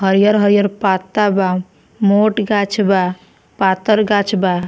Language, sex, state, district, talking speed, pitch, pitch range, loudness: Bhojpuri, female, Bihar, Muzaffarpur, 115 wpm, 200 Hz, 190-210 Hz, -15 LUFS